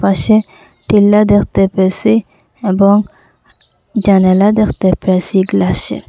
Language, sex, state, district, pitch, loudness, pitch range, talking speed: Bengali, female, Assam, Hailakandi, 200 Hz, -12 LUFS, 185-210 Hz, 90 wpm